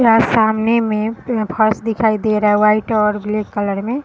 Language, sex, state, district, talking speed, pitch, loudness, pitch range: Hindi, female, Bihar, Sitamarhi, 190 wpm, 220 Hz, -16 LUFS, 210-225 Hz